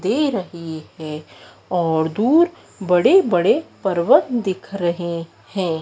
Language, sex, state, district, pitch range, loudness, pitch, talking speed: Hindi, female, Madhya Pradesh, Dhar, 165-240 Hz, -19 LUFS, 180 Hz, 115 wpm